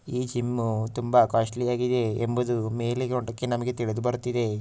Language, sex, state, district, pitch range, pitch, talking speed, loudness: Kannada, male, Karnataka, Shimoga, 115-125 Hz, 120 Hz, 155 wpm, -26 LUFS